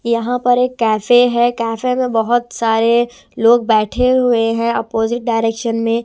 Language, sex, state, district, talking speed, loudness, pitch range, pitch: Hindi, female, Punjab, Kapurthala, 160 wpm, -15 LUFS, 225-245 Hz, 235 Hz